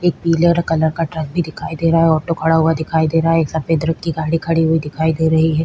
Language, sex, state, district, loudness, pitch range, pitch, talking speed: Hindi, female, Chhattisgarh, Korba, -16 LUFS, 160-165 Hz, 160 Hz, 285 wpm